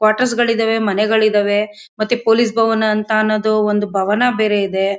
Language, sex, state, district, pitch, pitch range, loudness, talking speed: Kannada, female, Karnataka, Mysore, 215 Hz, 210-225 Hz, -16 LUFS, 145 wpm